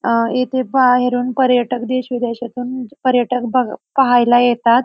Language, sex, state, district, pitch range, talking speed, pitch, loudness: Marathi, female, Maharashtra, Pune, 240-255 Hz, 125 wpm, 250 Hz, -16 LUFS